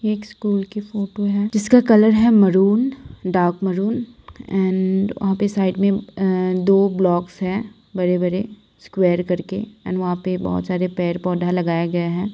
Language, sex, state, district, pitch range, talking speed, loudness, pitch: Hindi, female, Bihar, Saran, 180-210 Hz, 155 wpm, -19 LUFS, 195 Hz